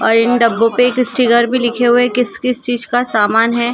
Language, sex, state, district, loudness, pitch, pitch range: Hindi, female, Maharashtra, Gondia, -13 LUFS, 240 Hz, 230-245 Hz